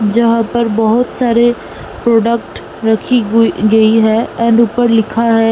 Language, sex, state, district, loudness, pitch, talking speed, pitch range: Hindi, female, Uttar Pradesh, Muzaffarnagar, -12 LUFS, 230 Hz, 140 wpm, 220-235 Hz